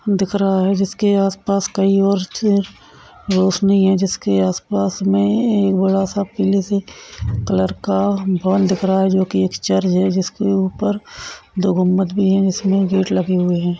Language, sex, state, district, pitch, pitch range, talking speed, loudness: Hindi, female, Goa, North and South Goa, 195 Hz, 185-200 Hz, 155 wpm, -17 LUFS